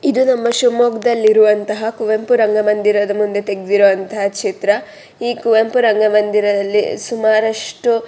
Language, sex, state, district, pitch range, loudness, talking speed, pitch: Kannada, female, Karnataka, Shimoga, 210-235 Hz, -15 LUFS, 110 wpm, 215 Hz